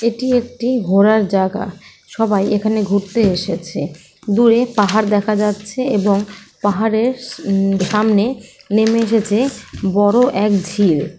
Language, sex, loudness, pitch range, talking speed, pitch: Awadhi, female, -16 LUFS, 200-230 Hz, 120 wpm, 210 Hz